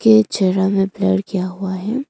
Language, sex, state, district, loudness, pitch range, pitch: Hindi, female, Arunachal Pradesh, Longding, -18 LUFS, 190-215 Hz, 195 Hz